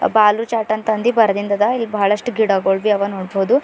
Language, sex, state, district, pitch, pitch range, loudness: Kannada, female, Karnataka, Bidar, 210 Hz, 200-220 Hz, -17 LUFS